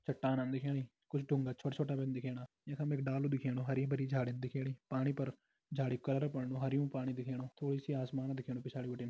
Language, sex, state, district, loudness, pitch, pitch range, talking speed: Garhwali, male, Uttarakhand, Tehri Garhwal, -39 LUFS, 135 Hz, 130-140 Hz, 190 wpm